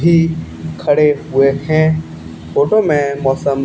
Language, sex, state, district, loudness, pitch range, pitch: Hindi, male, Haryana, Charkhi Dadri, -15 LUFS, 135-155 Hz, 140 Hz